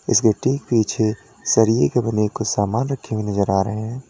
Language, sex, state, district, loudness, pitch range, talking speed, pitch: Hindi, male, Uttar Pradesh, Lalitpur, -20 LUFS, 105-120 Hz, 205 wpm, 110 Hz